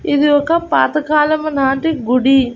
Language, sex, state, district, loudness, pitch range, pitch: Telugu, female, Andhra Pradesh, Annamaya, -14 LUFS, 270-310 Hz, 295 Hz